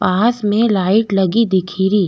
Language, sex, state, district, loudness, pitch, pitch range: Rajasthani, female, Rajasthan, Nagaur, -15 LUFS, 200 Hz, 190-220 Hz